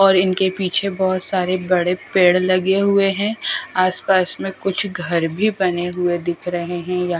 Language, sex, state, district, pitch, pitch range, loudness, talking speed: Hindi, female, Haryana, Charkhi Dadri, 185 Hz, 180-195 Hz, -18 LUFS, 175 wpm